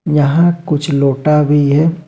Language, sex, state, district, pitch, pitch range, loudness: Hindi, male, Jharkhand, Ranchi, 150 Hz, 145-160 Hz, -13 LUFS